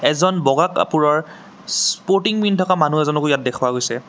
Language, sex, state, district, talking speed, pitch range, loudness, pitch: Assamese, male, Assam, Sonitpur, 160 wpm, 150-195 Hz, -18 LUFS, 155 Hz